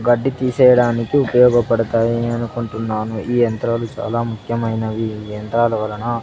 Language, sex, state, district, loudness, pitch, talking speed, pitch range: Telugu, male, Andhra Pradesh, Sri Satya Sai, -18 LUFS, 115 Hz, 95 wpm, 110-120 Hz